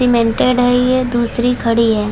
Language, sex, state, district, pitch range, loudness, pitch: Hindi, female, Chhattisgarh, Bilaspur, 230-250 Hz, -14 LUFS, 240 Hz